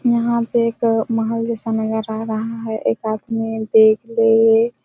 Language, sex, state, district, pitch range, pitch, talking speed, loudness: Hindi, female, Chhattisgarh, Raigarh, 220-230 Hz, 225 Hz, 160 wpm, -18 LUFS